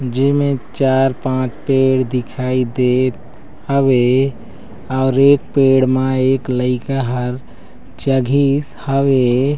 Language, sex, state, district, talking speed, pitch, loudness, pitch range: Chhattisgarhi, male, Chhattisgarh, Raigarh, 100 wpm, 130 Hz, -16 LUFS, 125-135 Hz